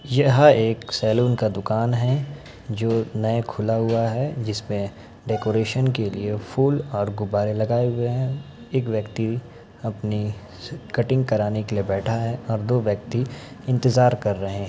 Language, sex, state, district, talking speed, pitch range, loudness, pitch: Hindi, male, Bihar, Gaya, 155 wpm, 105-125 Hz, -23 LUFS, 115 Hz